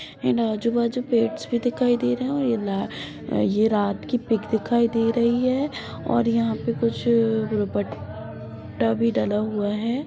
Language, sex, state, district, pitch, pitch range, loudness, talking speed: Hindi, female, Bihar, Gopalganj, 225 Hz, 200-235 Hz, -23 LUFS, 160 wpm